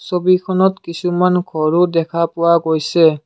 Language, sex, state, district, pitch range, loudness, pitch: Assamese, male, Assam, Kamrup Metropolitan, 165-180 Hz, -15 LUFS, 170 Hz